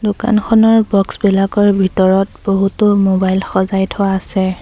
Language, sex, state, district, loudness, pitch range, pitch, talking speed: Assamese, female, Assam, Sonitpur, -13 LUFS, 190-205 Hz, 195 Hz, 115 wpm